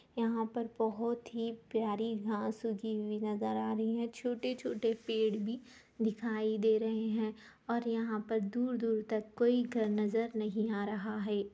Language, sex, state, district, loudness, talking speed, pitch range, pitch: Hindi, female, Jharkhand, Sahebganj, -35 LUFS, 165 wpm, 215-230 Hz, 225 Hz